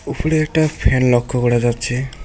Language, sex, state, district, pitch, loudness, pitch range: Bengali, male, West Bengal, Alipurduar, 125 Hz, -17 LUFS, 120-155 Hz